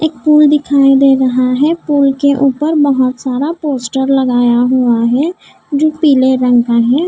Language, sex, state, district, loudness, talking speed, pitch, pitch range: Hindi, female, Maharashtra, Mumbai Suburban, -11 LUFS, 170 wpm, 275 Hz, 255-295 Hz